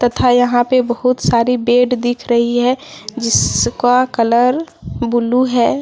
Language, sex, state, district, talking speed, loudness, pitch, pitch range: Hindi, female, Jharkhand, Deoghar, 135 wpm, -14 LUFS, 245 Hz, 240-250 Hz